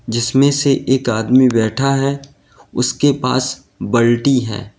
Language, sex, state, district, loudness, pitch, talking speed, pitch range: Hindi, male, Uttar Pradesh, Lalitpur, -15 LUFS, 130 Hz, 125 wpm, 120-135 Hz